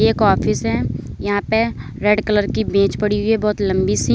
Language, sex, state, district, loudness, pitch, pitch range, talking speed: Hindi, female, Uttar Pradesh, Lalitpur, -18 LUFS, 200 Hz, 125-210 Hz, 215 wpm